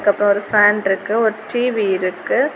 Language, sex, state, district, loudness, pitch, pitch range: Tamil, female, Tamil Nadu, Kanyakumari, -17 LUFS, 205 Hz, 200-220 Hz